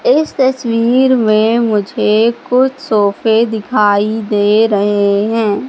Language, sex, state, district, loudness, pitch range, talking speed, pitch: Hindi, female, Madhya Pradesh, Katni, -12 LUFS, 210-250 Hz, 105 wpm, 220 Hz